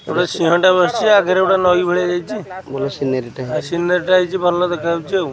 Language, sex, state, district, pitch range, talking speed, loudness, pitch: Odia, male, Odisha, Khordha, 170-185 Hz, 205 wpm, -16 LUFS, 180 Hz